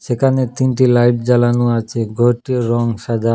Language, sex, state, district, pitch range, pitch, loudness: Bengali, male, Assam, Hailakandi, 115-125 Hz, 120 Hz, -15 LUFS